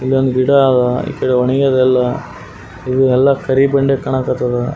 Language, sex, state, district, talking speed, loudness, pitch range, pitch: Kannada, male, Karnataka, Raichur, 125 wpm, -14 LUFS, 125-135 Hz, 130 Hz